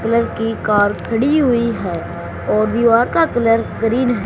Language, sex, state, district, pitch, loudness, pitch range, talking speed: Hindi, male, Haryana, Charkhi Dadri, 225 Hz, -16 LUFS, 205-235 Hz, 170 wpm